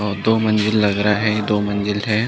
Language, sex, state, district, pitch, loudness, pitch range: Hindi, male, Chhattisgarh, Bastar, 105 Hz, -18 LUFS, 105-110 Hz